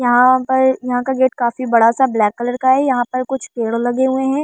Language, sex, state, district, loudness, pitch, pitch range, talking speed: Hindi, female, Delhi, New Delhi, -16 LUFS, 255 Hz, 240-260 Hz, 255 wpm